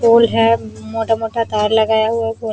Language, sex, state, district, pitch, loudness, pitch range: Hindi, female, Uttar Pradesh, Jalaun, 225 Hz, -16 LUFS, 220-230 Hz